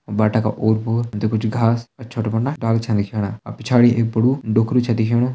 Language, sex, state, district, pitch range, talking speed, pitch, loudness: Hindi, male, Uttarakhand, Tehri Garhwal, 110-120 Hz, 245 wpm, 115 Hz, -19 LUFS